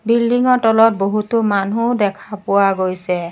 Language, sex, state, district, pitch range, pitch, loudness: Assamese, female, Assam, Sonitpur, 195-230 Hz, 210 Hz, -16 LUFS